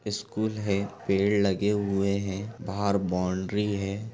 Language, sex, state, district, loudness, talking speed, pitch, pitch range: Hindi, female, Chhattisgarh, Bastar, -28 LUFS, 130 wpm, 100 Hz, 100-105 Hz